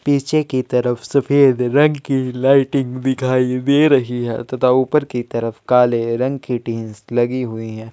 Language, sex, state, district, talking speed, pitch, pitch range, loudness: Hindi, male, Chhattisgarh, Sukma, 165 wpm, 125 Hz, 120-140 Hz, -17 LUFS